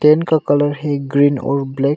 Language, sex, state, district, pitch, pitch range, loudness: Hindi, male, Arunachal Pradesh, Longding, 145 Hz, 140-150 Hz, -16 LUFS